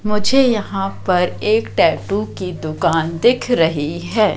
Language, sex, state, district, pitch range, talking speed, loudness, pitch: Hindi, female, Madhya Pradesh, Katni, 165-215 Hz, 135 wpm, -17 LUFS, 195 Hz